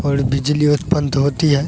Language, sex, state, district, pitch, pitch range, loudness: Hindi, male, Bihar, Araria, 145 Hz, 140-150 Hz, -17 LUFS